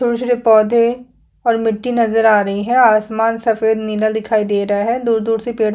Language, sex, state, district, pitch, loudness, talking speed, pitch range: Hindi, female, Chhattisgarh, Sukma, 225 Hz, -15 LUFS, 220 wpm, 215-235 Hz